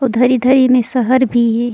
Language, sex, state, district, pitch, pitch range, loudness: Surgujia, female, Chhattisgarh, Sarguja, 250 Hz, 240-260 Hz, -13 LUFS